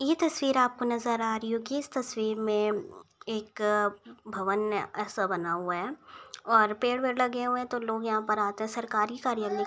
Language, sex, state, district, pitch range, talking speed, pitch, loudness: Hindi, female, Uttar Pradesh, Budaun, 210-245 Hz, 185 wpm, 220 Hz, -29 LUFS